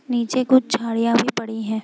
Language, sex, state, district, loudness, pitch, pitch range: Hindi, female, Bihar, Gopalganj, -20 LUFS, 235 Hz, 225-255 Hz